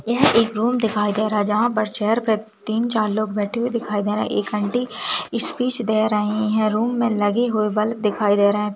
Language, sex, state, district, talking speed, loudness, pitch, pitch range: Hindi, female, Rajasthan, Nagaur, 235 wpm, -21 LUFS, 215 Hz, 210-230 Hz